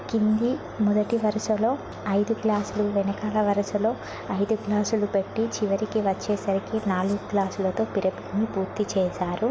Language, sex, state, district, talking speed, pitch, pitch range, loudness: Telugu, female, Telangana, Nalgonda, 105 wpm, 210 Hz, 195-220 Hz, -26 LUFS